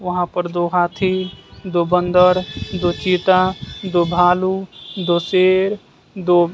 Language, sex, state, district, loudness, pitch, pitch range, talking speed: Hindi, male, Bihar, West Champaran, -17 LUFS, 180 Hz, 175-185 Hz, 120 wpm